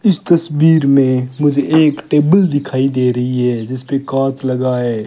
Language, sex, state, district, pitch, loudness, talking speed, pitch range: Hindi, male, Rajasthan, Bikaner, 135 Hz, -14 LUFS, 175 wpm, 125-150 Hz